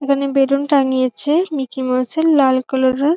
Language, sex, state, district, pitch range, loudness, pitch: Bengali, female, West Bengal, North 24 Parganas, 260-290 Hz, -16 LUFS, 275 Hz